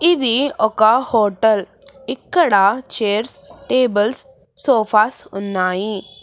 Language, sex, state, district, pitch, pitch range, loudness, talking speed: Telugu, female, Telangana, Hyderabad, 220 Hz, 205-260 Hz, -17 LUFS, 75 wpm